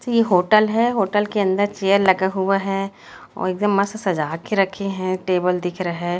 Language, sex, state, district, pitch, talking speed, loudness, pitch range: Hindi, female, Chhattisgarh, Raipur, 195 Hz, 205 wpm, -20 LUFS, 185-205 Hz